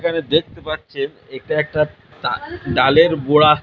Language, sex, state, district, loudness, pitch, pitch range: Bengali, male, West Bengal, Kolkata, -18 LUFS, 150 Hz, 150-155 Hz